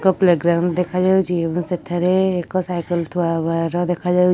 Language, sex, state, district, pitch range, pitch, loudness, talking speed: Odia, female, Odisha, Nuapada, 170-180 Hz, 175 Hz, -19 LUFS, 165 wpm